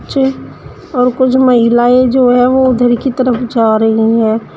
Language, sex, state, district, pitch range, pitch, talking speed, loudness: Hindi, female, Uttar Pradesh, Shamli, 235-260 Hz, 250 Hz, 170 wpm, -11 LUFS